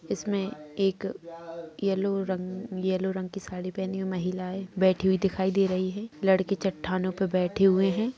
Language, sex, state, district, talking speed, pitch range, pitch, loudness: Hindi, female, Bihar, East Champaran, 170 wpm, 185-195 Hz, 190 Hz, -28 LUFS